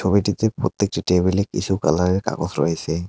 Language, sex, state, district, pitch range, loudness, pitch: Bengali, male, West Bengal, Cooch Behar, 85-100 Hz, -21 LUFS, 95 Hz